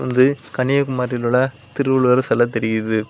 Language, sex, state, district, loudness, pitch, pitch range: Tamil, male, Tamil Nadu, Kanyakumari, -18 LUFS, 125 Hz, 115-130 Hz